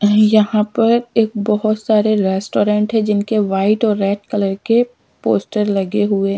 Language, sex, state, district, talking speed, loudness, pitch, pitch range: Hindi, female, Punjab, Pathankot, 160 wpm, -16 LUFS, 210 Hz, 205-215 Hz